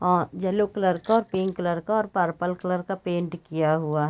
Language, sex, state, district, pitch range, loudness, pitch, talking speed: Hindi, female, Bihar, Sitamarhi, 170-190 Hz, -25 LUFS, 180 Hz, 205 wpm